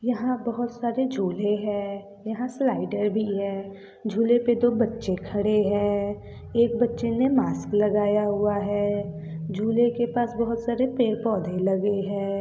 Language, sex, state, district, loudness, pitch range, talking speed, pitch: Hindi, female, Bihar, Gopalganj, -25 LUFS, 200-235 Hz, 155 wpm, 210 Hz